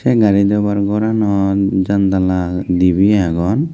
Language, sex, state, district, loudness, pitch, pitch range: Chakma, male, Tripura, West Tripura, -15 LUFS, 100 Hz, 95-105 Hz